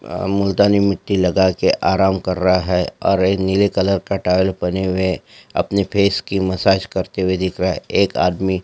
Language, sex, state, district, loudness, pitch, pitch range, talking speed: Hindi, female, Uttarakhand, Uttarkashi, -18 LUFS, 95 Hz, 90-100 Hz, 210 wpm